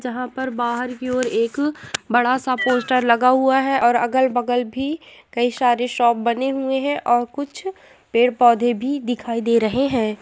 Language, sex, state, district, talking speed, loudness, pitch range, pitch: Hindi, female, Bihar, Gopalganj, 175 wpm, -19 LUFS, 240-265 Hz, 245 Hz